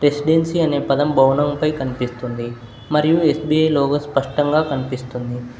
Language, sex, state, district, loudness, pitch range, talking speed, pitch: Telugu, male, Telangana, Hyderabad, -18 LUFS, 125-150 Hz, 105 wpm, 145 Hz